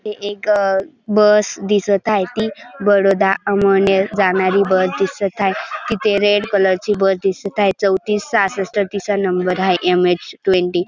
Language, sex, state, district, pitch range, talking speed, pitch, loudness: Marathi, male, Maharashtra, Dhule, 190-205 Hz, 155 wpm, 195 Hz, -16 LUFS